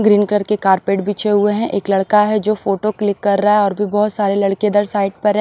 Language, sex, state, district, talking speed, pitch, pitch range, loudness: Hindi, female, Odisha, Nuapada, 275 wpm, 205 Hz, 200-210 Hz, -16 LUFS